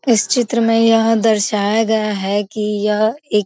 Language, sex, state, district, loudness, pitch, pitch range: Hindi, female, Bihar, Gopalganj, -16 LUFS, 220 Hz, 210-225 Hz